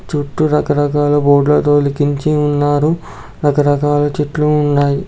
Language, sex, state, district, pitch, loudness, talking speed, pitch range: Telugu, male, Andhra Pradesh, Guntur, 145 Hz, -14 LUFS, 120 wpm, 145-150 Hz